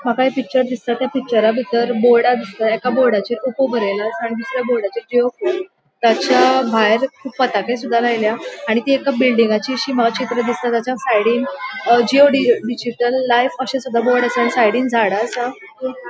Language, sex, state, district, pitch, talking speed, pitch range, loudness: Konkani, female, Goa, North and South Goa, 245 Hz, 140 wpm, 235-260 Hz, -17 LUFS